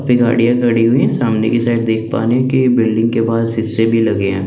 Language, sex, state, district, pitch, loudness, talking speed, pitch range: Hindi, male, Chandigarh, Chandigarh, 115 Hz, -14 LUFS, 255 wpm, 110-120 Hz